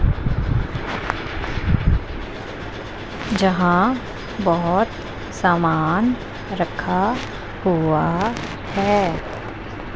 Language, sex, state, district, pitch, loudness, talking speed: Hindi, female, Punjab, Pathankot, 140 Hz, -22 LUFS, 35 wpm